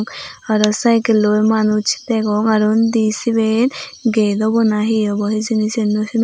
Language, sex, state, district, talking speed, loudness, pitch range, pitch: Chakma, female, Tripura, Unakoti, 155 wpm, -16 LUFS, 215-225 Hz, 220 Hz